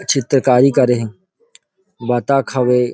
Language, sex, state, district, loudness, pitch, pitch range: Chhattisgarhi, male, Chhattisgarh, Rajnandgaon, -15 LUFS, 130 Hz, 125-145 Hz